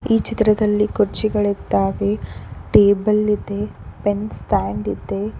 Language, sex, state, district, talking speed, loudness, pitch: Kannada, female, Karnataka, Koppal, 90 wpm, -19 LUFS, 205 Hz